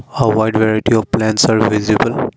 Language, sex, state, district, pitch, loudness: English, male, Assam, Kamrup Metropolitan, 110 Hz, -14 LUFS